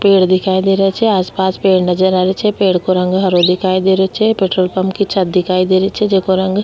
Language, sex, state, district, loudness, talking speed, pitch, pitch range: Rajasthani, female, Rajasthan, Nagaur, -13 LUFS, 280 wpm, 190 Hz, 185-195 Hz